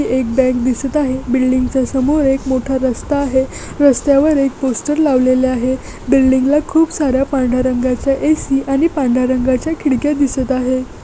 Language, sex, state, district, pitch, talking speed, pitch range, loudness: Marathi, female, Maharashtra, Nagpur, 265 Hz, 165 wpm, 255-280 Hz, -15 LUFS